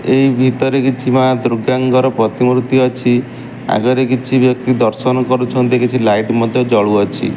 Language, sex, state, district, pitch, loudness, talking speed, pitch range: Odia, male, Odisha, Malkangiri, 125 Hz, -13 LUFS, 130 wpm, 120-130 Hz